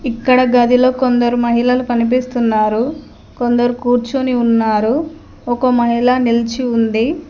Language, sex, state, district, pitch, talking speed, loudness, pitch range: Telugu, female, Telangana, Mahabubabad, 245 Hz, 100 wpm, -14 LUFS, 235-255 Hz